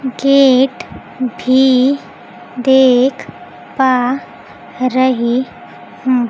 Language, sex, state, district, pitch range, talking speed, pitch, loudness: Hindi, female, Bihar, Kaimur, 255-265 Hz, 55 wpm, 255 Hz, -13 LUFS